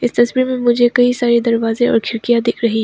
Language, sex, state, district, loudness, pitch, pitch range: Hindi, female, Arunachal Pradesh, Papum Pare, -15 LUFS, 240 Hz, 230-245 Hz